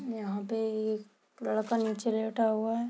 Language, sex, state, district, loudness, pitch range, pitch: Hindi, female, Uttar Pradesh, Hamirpur, -32 LUFS, 215-225 Hz, 220 Hz